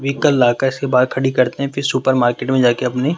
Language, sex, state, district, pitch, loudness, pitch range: Hindi, male, Rajasthan, Jaipur, 130 Hz, -16 LUFS, 125-140 Hz